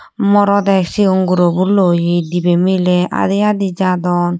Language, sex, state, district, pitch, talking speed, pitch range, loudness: Chakma, female, Tripura, Unakoti, 185 Hz, 120 wpm, 175-195 Hz, -14 LUFS